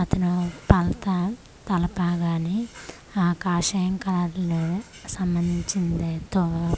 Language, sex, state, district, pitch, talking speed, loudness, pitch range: Telugu, female, Andhra Pradesh, Manyam, 175 Hz, 60 wpm, -25 LUFS, 170-185 Hz